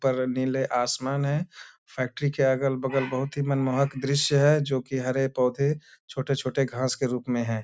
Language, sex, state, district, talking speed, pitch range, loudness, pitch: Hindi, male, Bihar, Bhagalpur, 175 wpm, 130-140 Hz, -26 LUFS, 135 Hz